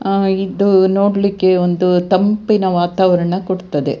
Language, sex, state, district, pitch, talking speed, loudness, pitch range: Kannada, female, Karnataka, Dakshina Kannada, 190 Hz, 105 wpm, -15 LUFS, 180-195 Hz